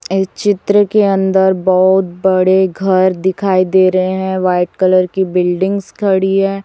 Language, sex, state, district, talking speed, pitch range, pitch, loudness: Hindi, female, Chhattisgarh, Raipur, 155 wpm, 185-195 Hz, 190 Hz, -13 LUFS